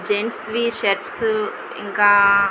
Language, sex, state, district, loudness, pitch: Telugu, female, Andhra Pradesh, Visakhapatnam, -19 LUFS, 220 Hz